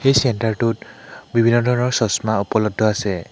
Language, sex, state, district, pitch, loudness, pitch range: Assamese, male, Assam, Hailakandi, 115 Hz, -19 LUFS, 110-120 Hz